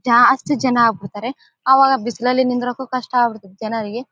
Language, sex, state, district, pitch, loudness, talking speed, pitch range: Kannada, female, Karnataka, Bellary, 245 Hz, -17 LUFS, 145 wpm, 230-255 Hz